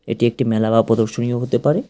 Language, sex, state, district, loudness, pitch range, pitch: Bengali, male, West Bengal, Cooch Behar, -18 LUFS, 115-125 Hz, 120 Hz